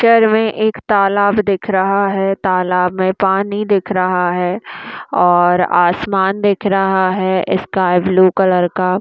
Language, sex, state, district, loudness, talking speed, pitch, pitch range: Hindi, female, Bihar, Madhepura, -14 LUFS, 145 wpm, 190 Hz, 185-200 Hz